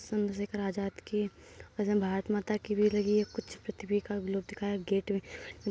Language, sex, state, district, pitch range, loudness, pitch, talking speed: Hindi, male, Uttar Pradesh, Jalaun, 200-210 Hz, -33 LUFS, 205 Hz, 155 wpm